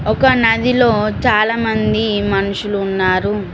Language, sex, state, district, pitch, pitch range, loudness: Telugu, female, Telangana, Mahabubabad, 215 Hz, 205-225 Hz, -15 LUFS